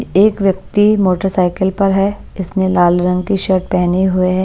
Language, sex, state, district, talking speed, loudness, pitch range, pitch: Hindi, female, Punjab, Pathankot, 160 wpm, -14 LUFS, 185-195 Hz, 190 Hz